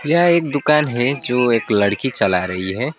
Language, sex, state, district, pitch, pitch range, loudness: Hindi, male, West Bengal, Alipurduar, 125 Hz, 105-150 Hz, -17 LUFS